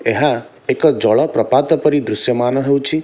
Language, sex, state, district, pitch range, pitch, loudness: Odia, male, Odisha, Khordha, 125-150 Hz, 140 Hz, -15 LUFS